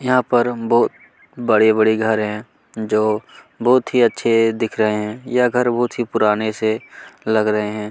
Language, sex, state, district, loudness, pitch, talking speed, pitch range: Hindi, male, Chhattisgarh, Kabirdham, -18 LUFS, 110 Hz, 175 wpm, 110-120 Hz